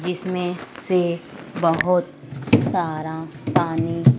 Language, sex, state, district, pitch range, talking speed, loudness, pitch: Hindi, female, Madhya Pradesh, Dhar, 160-180 Hz, 70 wpm, -22 LUFS, 170 Hz